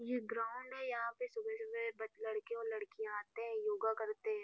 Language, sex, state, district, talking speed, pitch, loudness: Hindi, female, Bihar, Gopalganj, 200 wpm, 250 Hz, -42 LUFS